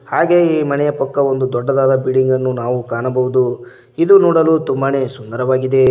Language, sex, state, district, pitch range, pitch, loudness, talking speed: Kannada, male, Karnataka, Koppal, 130-145 Hz, 130 Hz, -15 LUFS, 140 wpm